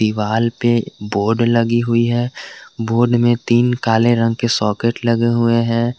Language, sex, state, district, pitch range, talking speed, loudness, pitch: Hindi, male, Jharkhand, Garhwa, 115-120 Hz, 160 wpm, -16 LUFS, 115 Hz